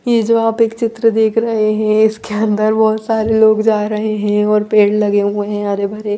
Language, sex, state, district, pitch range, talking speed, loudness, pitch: Hindi, female, Bihar, Patna, 210-220 Hz, 225 wpm, -14 LUFS, 215 Hz